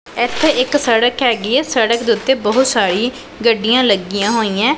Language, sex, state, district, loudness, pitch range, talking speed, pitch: Punjabi, female, Punjab, Pathankot, -15 LUFS, 220-255 Hz, 165 wpm, 235 Hz